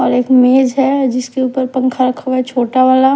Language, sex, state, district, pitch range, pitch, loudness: Hindi, female, Punjab, Kapurthala, 255-265 Hz, 260 Hz, -13 LUFS